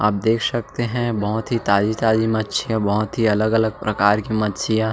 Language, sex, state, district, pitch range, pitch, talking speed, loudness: Hindi, male, Chhattisgarh, Jashpur, 105-115 Hz, 110 Hz, 170 wpm, -20 LUFS